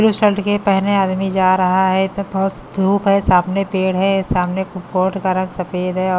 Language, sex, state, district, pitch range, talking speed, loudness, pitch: Hindi, female, Haryana, Charkhi Dadri, 185-195 Hz, 215 wpm, -17 LUFS, 190 Hz